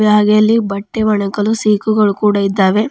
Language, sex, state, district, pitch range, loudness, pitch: Kannada, female, Karnataka, Bidar, 200-215 Hz, -13 LUFS, 210 Hz